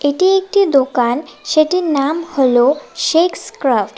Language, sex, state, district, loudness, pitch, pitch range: Bengali, female, West Bengal, Cooch Behar, -15 LUFS, 295 Hz, 265-345 Hz